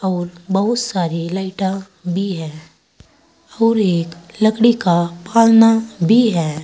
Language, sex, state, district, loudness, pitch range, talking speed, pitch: Hindi, female, Uttar Pradesh, Saharanpur, -16 LUFS, 170-225 Hz, 115 wpm, 190 Hz